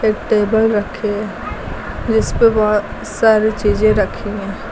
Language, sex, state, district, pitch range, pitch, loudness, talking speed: Hindi, female, Uttar Pradesh, Lucknow, 205-220 Hz, 215 Hz, -16 LUFS, 125 wpm